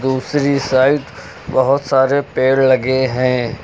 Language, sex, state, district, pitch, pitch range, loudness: Hindi, male, Uttar Pradesh, Lucknow, 130 Hz, 130-140 Hz, -15 LUFS